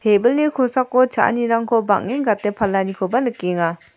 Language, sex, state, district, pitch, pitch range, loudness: Garo, female, Meghalaya, South Garo Hills, 230 Hz, 200-250 Hz, -18 LUFS